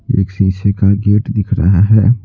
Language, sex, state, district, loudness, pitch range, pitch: Hindi, male, Bihar, Patna, -13 LUFS, 95-110 Hz, 105 Hz